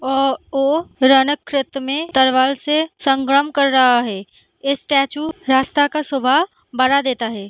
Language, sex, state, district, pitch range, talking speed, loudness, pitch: Hindi, female, Bihar, Sitamarhi, 265-290 Hz, 145 wpm, -17 LUFS, 275 Hz